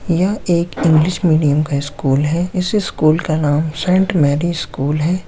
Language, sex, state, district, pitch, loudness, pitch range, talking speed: Hindi, male, Bihar, Samastipur, 165 Hz, -16 LUFS, 150-180 Hz, 170 wpm